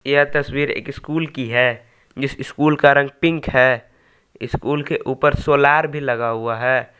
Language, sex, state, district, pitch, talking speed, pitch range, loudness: Hindi, male, Jharkhand, Palamu, 140 Hz, 180 wpm, 125-145 Hz, -18 LUFS